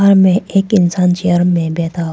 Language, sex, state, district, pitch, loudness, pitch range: Hindi, female, Arunachal Pradesh, Papum Pare, 180 Hz, -13 LUFS, 170-190 Hz